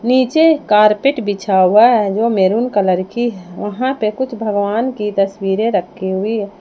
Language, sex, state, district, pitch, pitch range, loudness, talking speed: Hindi, female, Jharkhand, Palamu, 210 Hz, 195-240 Hz, -15 LUFS, 170 wpm